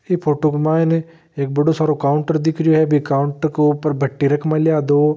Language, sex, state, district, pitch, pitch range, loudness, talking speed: Marwari, male, Rajasthan, Nagaur, 150 Hz, 145-160 Hz, -17 LUFS, 230 wpm